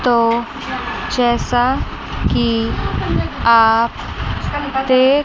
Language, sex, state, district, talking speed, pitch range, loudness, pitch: Hindi, female, Chandigarh, Chandigarh, 55 wpm, 230-265 Hz, -17 LUFS, 240 Hz